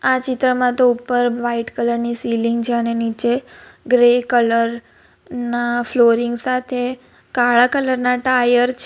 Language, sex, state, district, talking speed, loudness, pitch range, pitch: Gujarati, female, Gujarat, Valsad, 130 wpm, -17 LUFS, 235-250 Hz, 245 Hz